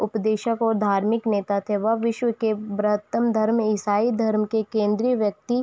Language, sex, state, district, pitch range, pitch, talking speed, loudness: Hindi, female, Chhattisgarh, Raigarh, 210-230 Hz, 215 Hz, 160 wpm, -23 LUFS